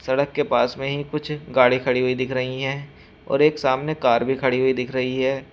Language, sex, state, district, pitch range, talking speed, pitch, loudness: Hindi, male, Uttar Pradesh, Shamli, 130-140 Hz, 240 wpm, 130 Hz, -21 LUFS